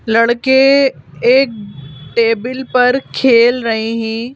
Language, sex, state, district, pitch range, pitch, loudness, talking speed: Hindi, female, Madhya Pradesh, Bhopal, 225-260 Hz, 235 Hz, -13 LUFS, 95 wpm